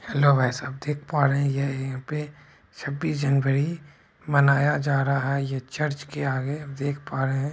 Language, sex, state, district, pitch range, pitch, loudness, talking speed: Hindi, male, Bihar, Purnia, 135-145 Hz, 140 Hz, -25 LUFS, 175 wpm